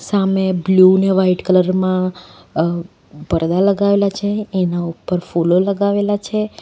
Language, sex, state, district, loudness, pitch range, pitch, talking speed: Gujarati, female, Gujarat, Valsad, -16 LUFS, 175-200 Hz, 185 Hz, 125 wpm